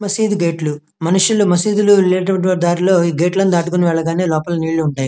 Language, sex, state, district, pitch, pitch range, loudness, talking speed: Telugu, male, Andhra Pradesh, Krishna, 175 Hz, 165-190 Hz, -15 LUFS, 175 wpm